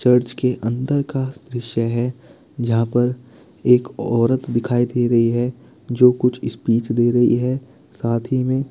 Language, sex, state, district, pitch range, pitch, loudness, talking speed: Hindi, male, Bihar, Kishanganj, 120-125 Hz, 120 Hz, -19 LUFS, 165 wpm